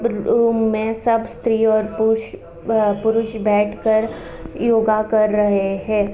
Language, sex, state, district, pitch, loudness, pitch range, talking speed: Hindi, female, Uttar Pradesh, Deoria, 220 Hz, -18 LUFS, 210-225 Hz, 145 wpm